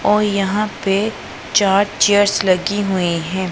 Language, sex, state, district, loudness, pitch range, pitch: Hindi, female, Punjab, Pathankot, -16 LUFS, 190-205 Hz, 200 Hz